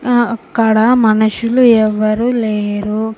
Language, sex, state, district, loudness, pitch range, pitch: Telugu, female, Andhra Pradesh, Sri Satya Sai, -13 LUFS, 215-235 Hz, 220 Hz